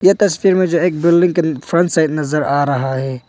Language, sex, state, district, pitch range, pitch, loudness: Hindi, male, Arunachal Pradesh, Longding, 145-180 Hz, 170 Hz, -15 LUFS